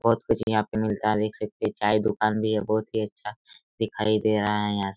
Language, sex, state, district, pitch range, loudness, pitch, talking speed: Hindi, male, Chhattisgarh, Raigarh, 105-110 Hz, -25 LUFS, 110 Hz, 265 wpm